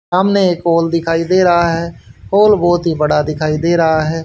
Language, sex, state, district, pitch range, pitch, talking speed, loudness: Hindi, female, Haryana, Charkhi Dadri, 160-175 Hz, 170 Hz, 210 wpm, -13 LUFS